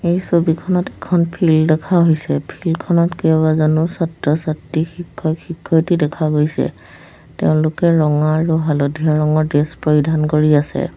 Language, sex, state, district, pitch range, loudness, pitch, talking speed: Assamese, female, Assam, Sonitpur, 155-170 Hz, -16 LUFS, 160 Hz, 120 wpm